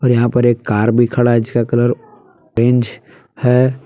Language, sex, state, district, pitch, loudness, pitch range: Hindi, male, Jharkhand, Palamu, 120 Hz, -15 LUFS, 120-125 Hz